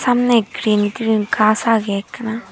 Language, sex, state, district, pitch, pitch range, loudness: Chakma, female, Tripura, Dhalai, 220 Hz, 210-230 Hz, -17 LUFS